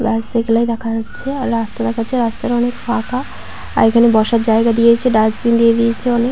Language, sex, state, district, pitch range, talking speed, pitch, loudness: Bengali, female, West Bengal, Paschim Medinipur, 230-240 Hz, 190 wpm, 230 Hz, -15 LUFS